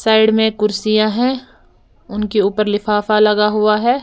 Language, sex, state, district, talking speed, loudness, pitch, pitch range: Hindi, female, Uttar Pradesh, Lalitpur, 150 wpm, -15 LUFS, 215 Hz, 210-220 Hz